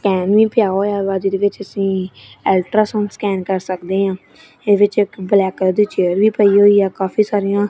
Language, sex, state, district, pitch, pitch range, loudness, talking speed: Punjabi, female, Punjab, Kapurthala, 200 Hz, 190-205 Hz, -16 LUFS, 195 wpm